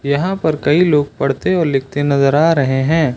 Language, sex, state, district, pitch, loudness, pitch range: Hindi, male, Uttar Pradesh, Lucknow, 145 Hz, -15 LUFS, 140-165 Hz